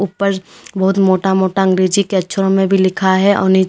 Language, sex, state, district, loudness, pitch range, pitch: Hindi, female, Uttar Pradesh, Lalitpur, -14 LUFS, 190-195 Hz, 190 Hz